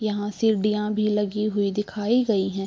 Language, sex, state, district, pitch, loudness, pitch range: Hindi, female, Chhattisgarh, Bilaspur, 210 Hz, -24 LUFS, 205-215 Hz